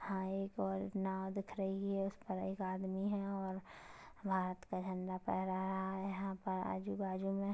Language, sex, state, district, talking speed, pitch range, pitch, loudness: Hindi, female, Chhattisgarh, Kabirdham, 185 wpm, 185-195 Hz, 190 Hz, -41 LUFS